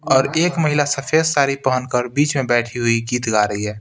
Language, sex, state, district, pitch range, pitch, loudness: Hindi, male, Bihar, Patna, 120-145 Hz, 135 Hz, -18 LUFS